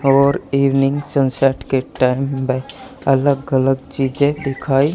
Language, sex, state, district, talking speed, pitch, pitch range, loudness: Hindi, male, Haryana, Charkhi Dadri, 120 wpm, 135 Hz, 135-140 Hz, -17 LUFS